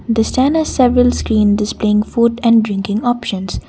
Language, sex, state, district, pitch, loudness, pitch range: English, female, Assam, Kamrup Metropolitan, 230 Hz, -14 LUFS, 210-245 Hz